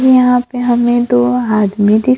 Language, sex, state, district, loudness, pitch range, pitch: Hindi, female, Maharashtra, Gondia, -12 LUFS, 225-250 Hz, 245 Hz